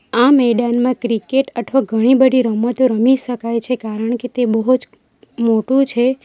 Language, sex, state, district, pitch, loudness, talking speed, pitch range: Gujarati, female, Gujarat, Valsad, 245 Hz, -16 LUFS, 165 wpm, 230-255 Hz